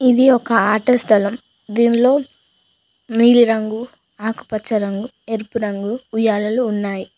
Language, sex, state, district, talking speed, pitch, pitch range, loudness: Telugu, female, Telangana, Mahabubabad, 110 wpm, 225 Hz, 215-240 Hz, -17 LUFS